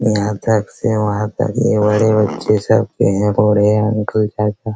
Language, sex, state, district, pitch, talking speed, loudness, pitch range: Hindi, male, Bihar, Araria, 105 Hz, 115 wpm, -16 LUFS, 105-110 Hz